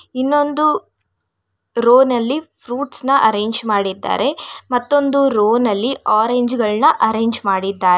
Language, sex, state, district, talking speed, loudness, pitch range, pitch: Kannada, female, Karnataka, Bangalore, 105 wpm, -16 LUFS, 205-265 Hz, 235 Hz